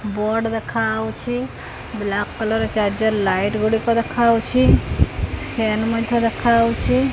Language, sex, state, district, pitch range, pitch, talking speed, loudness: Odia, female, Odisha, Khordha, 215-230 Hz, 225 Hz, 95 wpm, -19 LUFS